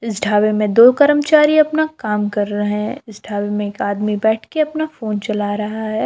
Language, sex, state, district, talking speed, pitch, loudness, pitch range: Hindi, female, Jharkhand, Palamu, 210 wpm, 215 Hz, -16 LUFS, 210-290 Hz